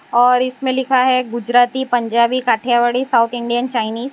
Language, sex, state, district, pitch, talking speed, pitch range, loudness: Hindi, female, Gujarat, Valsad, 245 Hz, 160 wpm, 240-255 Hz, -16 LUFS